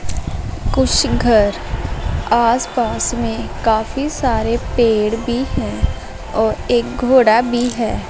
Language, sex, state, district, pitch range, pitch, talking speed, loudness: Hindi, female, Punjab, Pathankot, 210-240 Hz, 230 Hz, 105 wpm, -17 LUFS